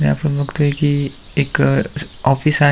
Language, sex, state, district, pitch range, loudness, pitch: Marathi, male, Maharashtra, Aurangabad, 135-145 Hz, -18 LUFS, 140 Hz